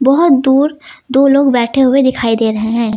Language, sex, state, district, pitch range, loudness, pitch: Hindi, female, Uttar Pradesh, Lucknow, 235-275 Hz, -12 LUFS, 265 Hz